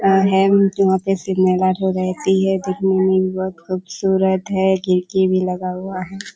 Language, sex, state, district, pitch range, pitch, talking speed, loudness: Hindi, female, Bihar, Kishanganj, 185-195 Hz, 190 Hz, 180 wpm, -18 LUFS